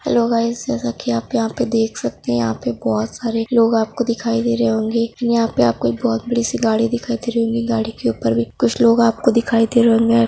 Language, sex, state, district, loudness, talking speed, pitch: Hindi, female, Bihar, Araria, -18 LUFS, 250 wpm, 230 Hz